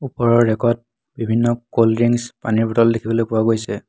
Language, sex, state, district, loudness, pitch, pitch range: Assamese, male, Assam, Hailakandi, -18 LUFS, 115 Hz, 115-120 Hz